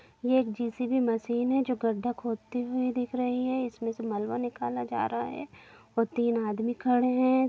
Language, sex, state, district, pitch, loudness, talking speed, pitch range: Hindi, female, Bihar, Gopalganj, 240 Hz, -29 LUFS, 190 wpm, 225-250 Hz